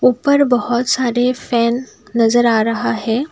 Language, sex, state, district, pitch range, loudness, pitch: Hindi, female, Assam, Kamrup Metropolitan, 230-250 Hz, -16 LUFS, 240 Hz